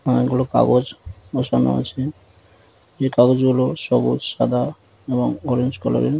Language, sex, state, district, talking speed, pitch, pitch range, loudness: Bengali, male, West Bengal, Dakshin Dinajpur, 125 wpm, 125 Hz, 95-130 Hz, -19 LUFS